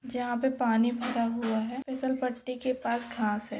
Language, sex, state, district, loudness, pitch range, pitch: Hindi, female, Maharashtra, Pune, -30 LUFS, 235-255 Hz, 245 Hz